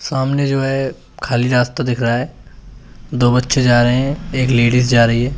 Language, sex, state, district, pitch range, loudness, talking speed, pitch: Hindi, male, Uttar Pradesh, Shamli, 120-135 Hz, -15 LUFS, 200 wpm, 125 Hz